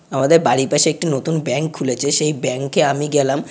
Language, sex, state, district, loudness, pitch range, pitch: Bengali, male, West Bengal, North 24 Parganas, -17 LUFS, 135-155 Hz, 145 Hz